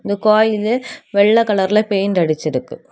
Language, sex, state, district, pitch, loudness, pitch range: Tamil, female, Tamil Nadu, Kanyakumari, 210 Hz, -16 LUFS, 195-220 Hz